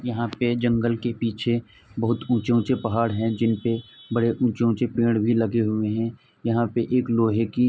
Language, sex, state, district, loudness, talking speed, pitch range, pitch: Hindi, male, Uttar Pradesh, Etah, -24 LUFS, 180 wpm, 115-120 Hz, 115 Hz